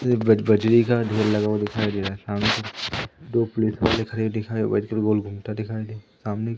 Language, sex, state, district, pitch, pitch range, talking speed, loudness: Hindi, male, Madhya Pradesh, Umaria, 110 Hz, 105-110 Hz, 190 wpm, -23 LUFS